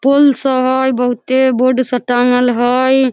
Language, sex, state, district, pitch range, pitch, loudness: Maithili, female, Bihar, Samastipur, 250-260 Hz, 255 Hz, -13 LUFS